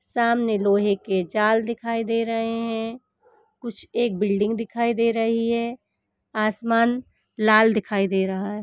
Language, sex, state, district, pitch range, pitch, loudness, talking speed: Hindi, female, Uttar Pradesh, Hamirpur, 210-235 Hz, 225 Hz, -22 LUFS, 165 wpm